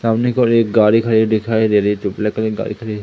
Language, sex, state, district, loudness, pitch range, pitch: Hindi, male, Madhya Pradesh, Umaria, -16 LUFS, 105-115 Hz, 110 Hz